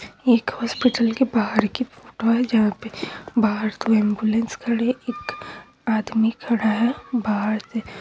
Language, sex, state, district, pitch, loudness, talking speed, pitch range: Hindi, female, Chhattisgarh, Raigarh, 225 Hz, -22 LUFS, 150 wpm, 220-240 Hz